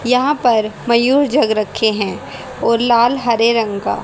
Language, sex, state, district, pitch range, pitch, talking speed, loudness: Hindi, female, Haryana, Charkhi Dadri, 220-250 Hz, 235 Hz, 165 wpm, -15 LUFS